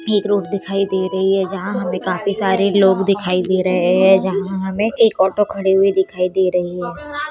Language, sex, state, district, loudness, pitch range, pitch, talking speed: Chhattisgarhi, female, Chhattisgarh, Korba, -17 LUFS, 185-200 Hz, 190 Hz, 205 wpm